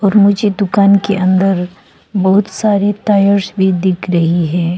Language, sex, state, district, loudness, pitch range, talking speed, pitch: Hindi, female, Arunachal Pradesh, Longding, -13 LUFS, 185-200 Hz, 140 wpm, 195 Hz